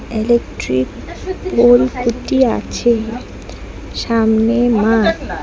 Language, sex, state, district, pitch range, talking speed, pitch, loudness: Bengali, female, West Bengal, Alipurduar, 165-240 Hz, 65 wpm, 230 Hz, -15 LUFS